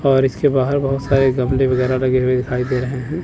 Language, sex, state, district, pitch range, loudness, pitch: Hindi, male, Chandigarh, Chandigarh, 130-135 Hz, -17 LUFS, 130 Hz